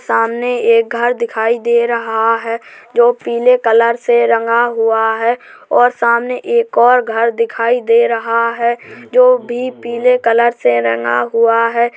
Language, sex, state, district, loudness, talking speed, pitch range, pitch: Hindi, female, Uttar Pradesh, Jalaun, -13 LUFS, 155 wpm, 230-240 Hz, 235 Hz